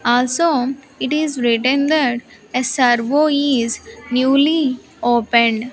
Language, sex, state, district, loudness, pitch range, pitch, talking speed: English, female, Andhra Pradesh, Sri Satya Sai, -17 LUFS, 240-285 Hz, 255 Hz, 105 wpm